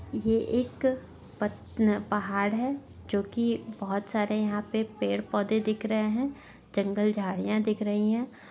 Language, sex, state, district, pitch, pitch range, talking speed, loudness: Hindi, female, Bihar, Sitamarhi, 215 Hz, 205-225 Hz, 140 wpm, -29 LUFS